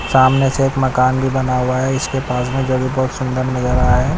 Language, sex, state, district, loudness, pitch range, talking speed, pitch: Hindi, male, Odisha, Nuapada, -16 LUFS, 130-135 Hz, 260 wpm, 130 Hz